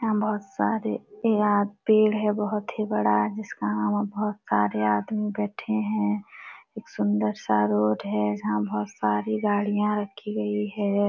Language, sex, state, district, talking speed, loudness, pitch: Hindi, female, Jharkhand, Sahebganj, 145 wpm, -25 LUFS, 205 Hz